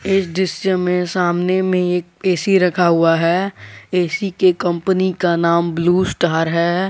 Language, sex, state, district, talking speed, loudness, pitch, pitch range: Hindi, male, Jharkhand, Garhwa, 155 wpm, -17 LUFS, 180 Hz, 170-185 Hz